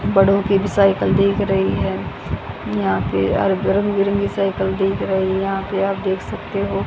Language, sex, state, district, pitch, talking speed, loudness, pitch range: Hindi, female, Haryana, Jhajjar, 195 Hz, 185 wpm, -19 LUFS, 190-195 Hz